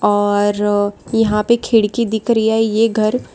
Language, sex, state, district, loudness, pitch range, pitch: Hindi, female, Gujarat, Valsad, -16 LUFS, 205-225 Hz, 220 Hz